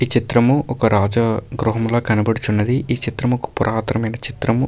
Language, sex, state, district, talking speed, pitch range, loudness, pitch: Telugu, male, Karnataka, Bellary, 140 wpm, 110-125 Hz, -18 LUFS, 120 Hz